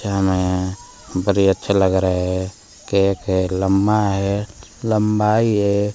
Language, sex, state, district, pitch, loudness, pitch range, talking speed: Hindi, male, Bihar, Kaimur, 100 Hz, -19 LUFS, 95-105 Hz, 110 wpm